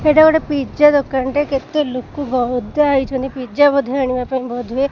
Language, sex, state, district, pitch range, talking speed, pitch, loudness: Odia, female, Odisha, Khordha, 255-290 Hz, 185 wpm, 275 Hz, -16 LUFS